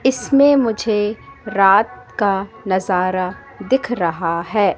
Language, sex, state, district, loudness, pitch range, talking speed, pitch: Hindi, female, Madhya Pradesh, Katni, -17 LUFS, 185-230 Hz, 100 wpm, 205 Hz